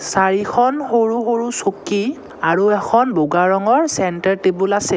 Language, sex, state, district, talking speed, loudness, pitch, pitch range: Assamese, male, Assam, Kamrup Metropolitan, 135 wpm, -17 LUFS, 205 Hz, 190-235 Hz